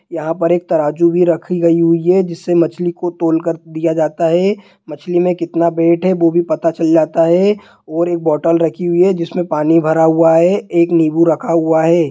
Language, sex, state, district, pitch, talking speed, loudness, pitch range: Hindi, male, Bihar, Jahanabad, 170 Hz, 215 wpm, -14 LUFS, 165-175 Hz